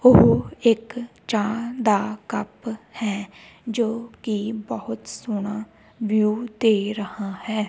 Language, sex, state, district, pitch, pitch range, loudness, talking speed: Punjabi, female, Punjab, Kapurthala, 215 Hz, 210-230 Hz, -24 LUFS, 110 wpm